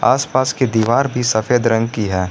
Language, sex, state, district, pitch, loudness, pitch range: Hindi, male, Jharkhand, Garhwa, 120 Hz, -16 LUFS, 110-130 Hz